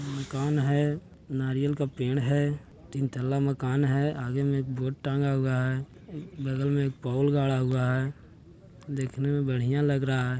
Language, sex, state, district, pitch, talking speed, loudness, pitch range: Hindi, male, Bihar, Jahanabad, 135 Hz, 180 wpm, -28 LUFS, 130-140 Hz